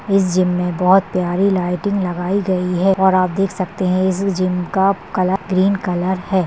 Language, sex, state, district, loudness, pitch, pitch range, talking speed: Hindi, female, Maharashtra, Solapur, -17 LUFS, 185 Hz, 180-195 Hz, 195 wpm